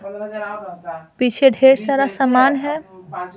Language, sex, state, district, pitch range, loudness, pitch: Hindi, female, Bihar, Patna, 185-270 Hz, -16 LUFS, 245 Hz